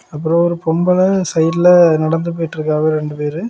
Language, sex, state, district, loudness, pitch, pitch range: Tamil, male, Tamil Nadu, Kanyakumari, -14 LUFS, 165 Hz, 155-175 Hz